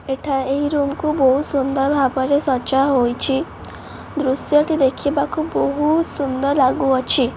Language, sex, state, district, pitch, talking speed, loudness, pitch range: Odia, female, Odisha, Khordha, 275 Hz, 120 wpm, -18 LUFS, 265-290 Hz